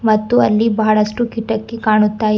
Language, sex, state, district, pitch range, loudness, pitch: Kannada, female, Karnataka, Bidar, 215-225 Hz, -15 LUFS, 220 Hz